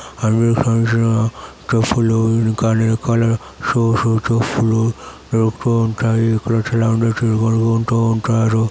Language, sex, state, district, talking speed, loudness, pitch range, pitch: Telugu, male, Andhra Pradesh, Chittoor, 95 wpm, -17 LUFS, 110-115 Hz, 115 Hz